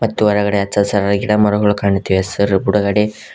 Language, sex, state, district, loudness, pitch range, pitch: Kannada, male, Karnataka, Koppal, -15 LUFS, 100-105 Hz, 100 Hz